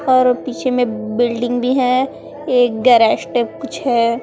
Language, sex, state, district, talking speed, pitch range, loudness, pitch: Hindi, female, Chhattisgarh, Raipur, 140 wpm, 235-255 Hz, -16 LUFS, 245 Hz